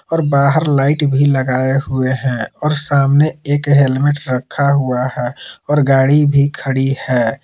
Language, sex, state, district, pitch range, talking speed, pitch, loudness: Hindi, male, Jharkhand, Palamu, 130-145 Hz, 155 wpm, 140 Hz, -15 LUFS